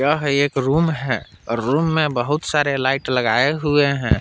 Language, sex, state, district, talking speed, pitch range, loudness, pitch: Hindi, male, Jharkhand, Palamu, 170 wpm, 130-150 Hz, -19 LUFS, 140 Hz